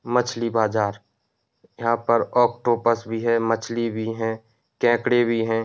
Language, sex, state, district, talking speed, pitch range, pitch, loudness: Hindi, male, Uttar Pradesh, Etah, 140 wpm, 115-120 Hz, 115 Hz, -22 LUFS